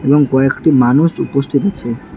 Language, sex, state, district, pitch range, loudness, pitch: Bengali, female, West Bengal, Alipurduar, 130-145 Hz, -13 LUFS, 140 Hz